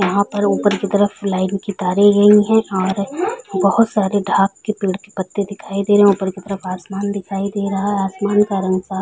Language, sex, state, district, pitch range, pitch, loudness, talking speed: Hindi, female, Chhattisgarh, Balrampur, 195-205 Hz, 200 Hz, -17 LUFS, 235 wpm